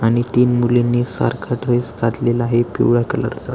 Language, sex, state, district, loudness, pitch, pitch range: Marathi, male, Maharashtra, Aurangabad, -17 LUFS, 120 Hz, 115-120 Hz